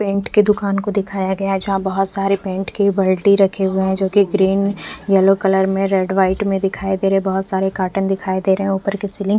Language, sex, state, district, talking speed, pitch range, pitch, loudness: Hindi, female, Punjab, Fazilka, 255 wpm, 190-200 Hz, 195 Hz, -17 LUFS